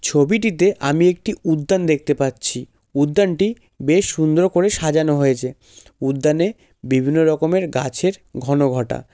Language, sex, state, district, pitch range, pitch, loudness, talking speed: Bengali, male, West Bengal, Jalpaiguri, 135-185 Hz, 155 Hz, -18 LUFS, 110 wpm